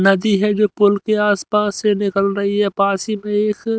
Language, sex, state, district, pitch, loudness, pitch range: Hindi, male, Haryana, Rohtak, 205 Hz, -17 LUFS, 200-210 Hz